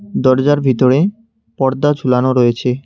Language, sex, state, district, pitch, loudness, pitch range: Bengali, male, West Bengal, Cooch Behar, 135 Hz, -14 LUFS, 130-145 Hz